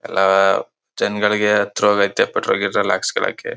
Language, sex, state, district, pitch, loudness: Kannada, male, Karnataka, Chamarajanagar, 105 Hz, -17 LUFS